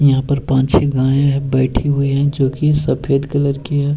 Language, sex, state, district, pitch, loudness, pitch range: Hindi, male, Bihar, Bhagalpur, 140 Hz, -16 LUFS, 135-145 Hz